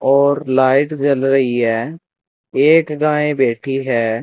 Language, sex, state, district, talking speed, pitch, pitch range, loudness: Hindi, male, Rajasthan, Bikaner, 130 wpm, 135 Hz, 130-150 Hz, -15 LUFS